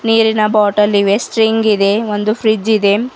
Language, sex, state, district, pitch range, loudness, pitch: Kannada, female, Karnataka, Bidar, 205-220 Hz, -13 LUFS, 215 Hz